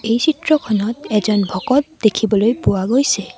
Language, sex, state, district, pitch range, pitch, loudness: Assamese, female, Assam, Sonitpur, 210-265 Hz, 225 Hz, -17 LUFS